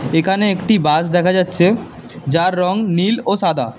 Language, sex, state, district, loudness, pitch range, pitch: Bengali, male, Karnataka, Bangalore, -16 LUFS, 165-200 Hz, 180 Hz